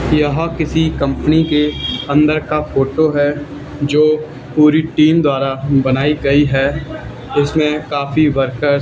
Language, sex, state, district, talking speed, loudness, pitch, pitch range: Hindi, male, Haryana, Charkhi Dadri, 130 wpm, -15 LUFS, 150 Hz, 140-155 Hz